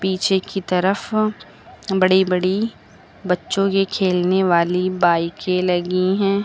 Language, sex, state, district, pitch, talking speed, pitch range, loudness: Hindi, female, Uttar Pradesh, Lucknow, 185 Hz, 110 wpm, 180-195 Hz, -19 LUFS